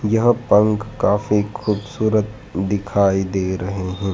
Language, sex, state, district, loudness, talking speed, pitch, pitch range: Hindi, male, Madhya Pradesh, Dhar, -19 LUFS, 115 wpm, 105 Hz, 95-110 Hz